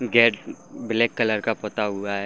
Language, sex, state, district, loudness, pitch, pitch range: Hindi, male, Bihar, Saran, -22 LUFS, 110 Hz, 105-115 Hz